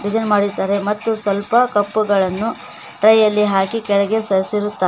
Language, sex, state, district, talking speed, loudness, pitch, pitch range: Kannada, female, Karnataka, Koppal, 135 wpm, -17 LUFS, 210 Hz, 200-220 Hz